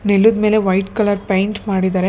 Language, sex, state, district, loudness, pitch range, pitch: Kannada, female, Karnataka, Bangalore, -16 LUFS, 190-215 Hz, 200 Hz